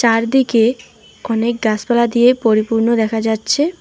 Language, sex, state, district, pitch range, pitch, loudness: Bengali, female, West Bengal, Alipurduar, 225-240 Hz, 230 Hz, -15 LUFS